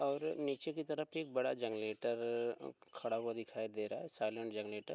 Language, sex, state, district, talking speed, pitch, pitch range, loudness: Hindi, male, Bihar, Begusarai, 205 wpm, 120 Hz, 110-140 Hz, -41 LUFS